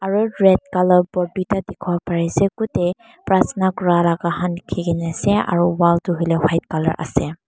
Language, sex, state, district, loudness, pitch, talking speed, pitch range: Nagamese, female, Mizoram, Aizawl, -19 LUFS, 175 Hz, 175 wpm, 170-190 Hz